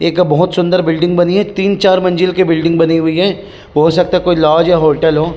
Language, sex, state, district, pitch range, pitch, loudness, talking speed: Chhattisgarhi, male, Chhattisgarh, Rajnandgaon, 165-185 Hz, 175 Hz, -12 LUFS, 255 wpm